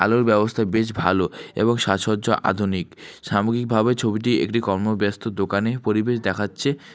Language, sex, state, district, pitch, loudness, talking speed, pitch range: Bengali, male, West Bengal, Alipurduar, 110 Hz, -21 LUFS, 120 wpm, 100-115 Hz